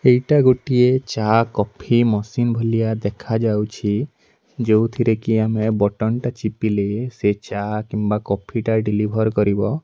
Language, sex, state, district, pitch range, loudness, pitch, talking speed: Odia, male, Odisha, Nuapada, 105-120 Hz, -19 LUFS, 110 Hz, 110 wpm